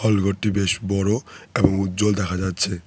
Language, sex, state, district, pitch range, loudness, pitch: Bengali, male, West Bengal, Cooch Behar, 95-105 Hz, -22 LUFS, 100 Hz